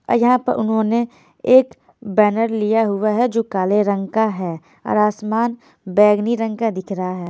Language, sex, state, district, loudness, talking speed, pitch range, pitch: Hindi, female, Haryana, Jhajjar, -18 LUFS, 180 wpm, 200-230 Hz, 215 Hz